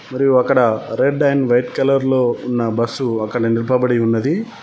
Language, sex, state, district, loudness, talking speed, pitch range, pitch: Telugu, male, Telangana, Mahabubabad, -17 LUFS, 155 wpm, 115-135 Hz, 125 Hz